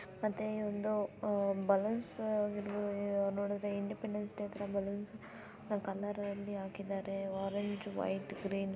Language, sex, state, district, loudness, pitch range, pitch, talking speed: Kannada, female, Karnataka, Belgaum, -38 LUFS, 200-210 Hz, 205 Hz, 110 wpm